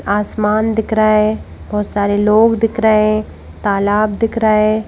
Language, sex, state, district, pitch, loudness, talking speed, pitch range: Hindi, female, Madhya Pradesh, Bhopal, 215 Hz, -15 LUFS, 170 wpm, 210-220 Hz